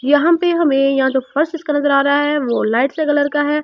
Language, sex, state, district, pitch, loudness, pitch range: Hindi, female, Delhi, New Delhi, 290 Hz, -16 LUFS, 275-300 Hz